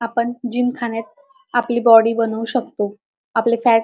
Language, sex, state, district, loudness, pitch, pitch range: Marathi, female, Maharashtra, Dhule, -18 LUFS, 235 Hz, 225-245 Hz